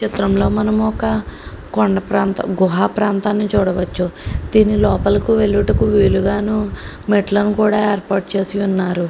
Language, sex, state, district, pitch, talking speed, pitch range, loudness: Telugu, female, Andhra Pradesh, Krishna, 200 Hz, 110 wpm, 185-210 Hz, -17 LUFS